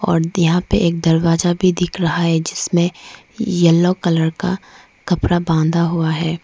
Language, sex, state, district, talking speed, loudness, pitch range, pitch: Hindi, female, Arunachal Pradesh, Lower Dibang Valley, 150 wpm, -17 LUFS, 165-180 Hz, 170 Hz